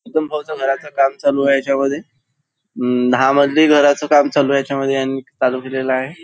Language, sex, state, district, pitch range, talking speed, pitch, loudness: Marathi, male, Maharashtra, Nagpur, 135-145 Hz, 175 wpm, 140 Hz, -16 LUFS